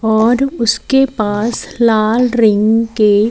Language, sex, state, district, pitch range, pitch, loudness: Hindi, female, Chandigarh, Chandigarh, 215-240 Hz, 225 Hz, -13 LUFS